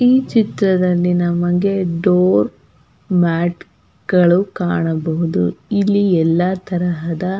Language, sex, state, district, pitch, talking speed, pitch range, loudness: Kannada, female, Karnataka, Belgaum, 180 Hz, 90 wpm, 170-190 Hz, -16 LUFS